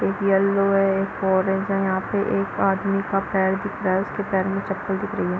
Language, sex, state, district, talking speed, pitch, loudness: Hindi, female, Chhattisgarh, Bilaspur, 245 wpm, 195 Hz, -22 LUFS